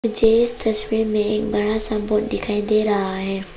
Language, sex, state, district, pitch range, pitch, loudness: Hindi, female, Arunachal Pradesh, Papum Pare, 210-220 Hz, 215 Hz, -18 LUFS